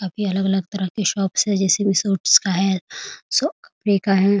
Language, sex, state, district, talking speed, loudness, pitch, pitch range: Hindi, female, Bihar, Muzaffarpur, 190 wpm, -19 LUFS, 195 Hz, 190-200 Hz